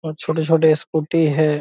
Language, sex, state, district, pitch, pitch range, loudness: Hindi, male, Bihar, Purnia, 155 Hz, 155-160 Hz, -18 LUFS